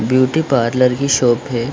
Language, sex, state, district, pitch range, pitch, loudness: Hindi, male, Bihar, Supaul, 120-135 Hz, 125 Hz, -15 LUFS